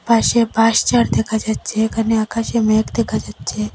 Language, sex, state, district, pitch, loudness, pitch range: Bengali, female, Assam, Hailakandi, 220 Hz, -17 LUFS, 215-230 Hz